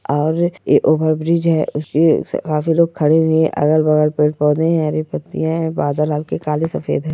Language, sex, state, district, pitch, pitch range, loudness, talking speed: Hindi, female, Bihar, Saran, 155 Hz, 150-160 Hz, -16 LUFS, 175 wpm